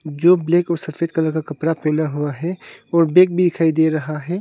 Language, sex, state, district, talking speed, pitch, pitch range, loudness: Hindi, male, Arunachal Pradesh, Longding, 230 wpm, 160 Hz, 155-175 Hz, -18 LUFS